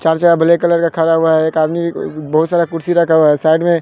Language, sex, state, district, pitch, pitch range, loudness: Hindi, male, Bihar, West Champaran, 165 Hz, 160-170 Hz, -13 LUFS